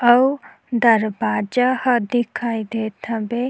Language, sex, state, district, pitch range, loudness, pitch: Chhattisgarhi, female, Chhattisgarh, Sukma, 220-250 Hz, -20 LUFS, 235 Hz